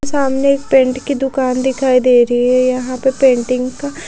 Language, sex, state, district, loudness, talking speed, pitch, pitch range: Hindi, female, Odisha, Nuapada, -14 LUFS, 190 wpm, 260 Hz, 255-270 Hz